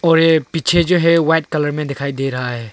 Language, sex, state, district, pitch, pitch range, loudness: Hindi, male, Arunachal Pradesh, Longding, 160 Hz, 140-165 Hz, -16 LUFS